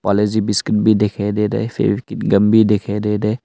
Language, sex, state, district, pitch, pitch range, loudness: Hindi, male, Arunachal Pradesh, Longding, 105 Hz, 105-110 Hz, -16 LUFS